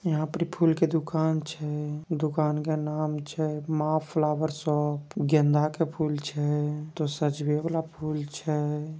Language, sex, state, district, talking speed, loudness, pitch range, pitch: Angika, female, Bihar, Begusarai, 160 wpm, -28 LUFS, 150-160 Hz, 155 Hz